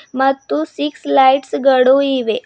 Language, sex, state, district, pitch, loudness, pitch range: Kannada, female, Karnataka, Bidar, 270 Hz, -14 LUFS, 265-290 Hz